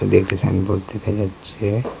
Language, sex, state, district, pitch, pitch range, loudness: Bengali, male, Assam, Hailakandi, 100 Hz, 95-105 Hz, -21 LUFS